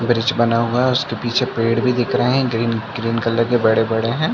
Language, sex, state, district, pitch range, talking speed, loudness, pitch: Hindi, male, Chhattisgarh, Rajnandgaon, 115-125 Hz, 250 wpm, -18 LUFS, 115 Hz